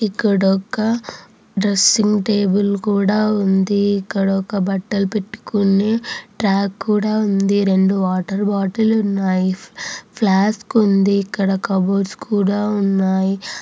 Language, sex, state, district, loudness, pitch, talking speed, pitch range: Telugu, female, Andhra Pradesh, Anantapur, -17 LUFS, 200 Hz, 100 wpm, 195-210 Hz